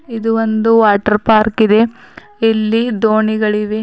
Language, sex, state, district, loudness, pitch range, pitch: Kannada, female, Karnataka, Bidar, -13 LUFS, 215-225 Hz, 220 Hz